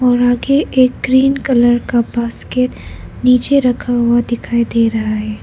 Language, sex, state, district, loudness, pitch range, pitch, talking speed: Hindi, female, Arunachal Pradesh, Lower Dibang Valley, -14 LUFS, 235-255 Hz, 245 Hz, 155 wpm